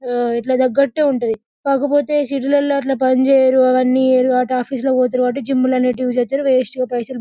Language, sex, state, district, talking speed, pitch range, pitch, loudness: Telugu, female, Telangana, Karimnagar, 185 wpm, 250-275 Hz, 260 Hz, -16 LUFS